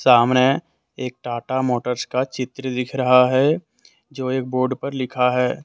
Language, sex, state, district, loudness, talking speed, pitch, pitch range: Hindi, male, Jharkhand, Deoghar, -20 LUFS, 160 wpm, 130 Hz, 125-130 Hz